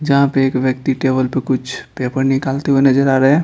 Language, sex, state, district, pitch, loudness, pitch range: Hindi, male, Bihar, Patna, 135 Hz, -16 LUFS, 130-135 Hz